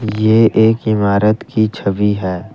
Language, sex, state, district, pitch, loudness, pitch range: Hindi, male, Assam, Kamrup Metropolitan, 110 Hz, -14 LUFS, 100-110 Hz